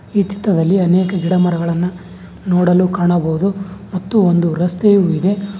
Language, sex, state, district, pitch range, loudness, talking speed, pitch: Kannada, male, Karnataka, Bangalore, 175-195 Hz, -15 LUFS, 120 wpm, 180 Hz